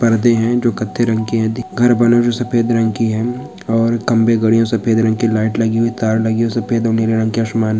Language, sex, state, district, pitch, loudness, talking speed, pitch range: Hindi, male, Bihar, Jamui, 115 Hz, -15 LUFS, 255 wpm, 110-120 Hz